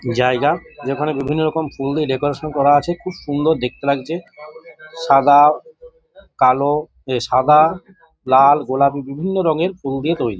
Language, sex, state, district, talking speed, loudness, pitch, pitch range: Bengali, male, West Bengal, Jhargram, 140 wpm, -17 LUFS, 150 Hz, 135-160 Hz